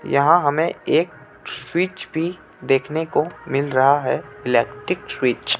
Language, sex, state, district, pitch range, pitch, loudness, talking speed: Hindi, male, Jharkhand, Ranchi, 135-165 Hz, 145 Hz, -20 LUFS, 140 wpm